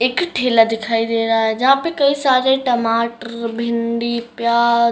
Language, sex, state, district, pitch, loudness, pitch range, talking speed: Hindi, female, Uttarakhand, Uttarkashi, 235 Hz, -17 LUFS, 230-255 Hz, 170 wpm